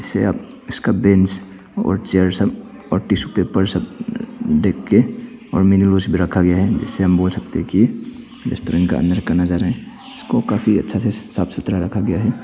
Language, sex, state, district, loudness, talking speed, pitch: Hindi, male, Arunachal Pradesh, Papum Pare, -18 LUFS, 185 wpm, 95 Hz